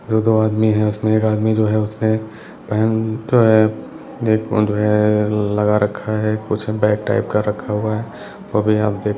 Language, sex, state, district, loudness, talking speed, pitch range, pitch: Hindi, male, Bihar, Jahanabad, -18 LUFS, 165 wpm, 105-110 Hz, 110 Hz